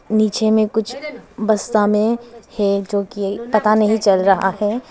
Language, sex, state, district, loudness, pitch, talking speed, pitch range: Hindi, female, Arunachal Pradesh, Papum Pare, -17 LUFS, 215 Hz, 160 wpm, 200-220 Hz